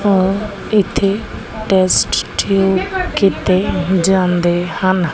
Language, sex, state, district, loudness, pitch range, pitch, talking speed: Punjabi, female, Punjab, Kapurthala, -15 LUFS, 185-200 Hz, 190 Hz, 70 wpm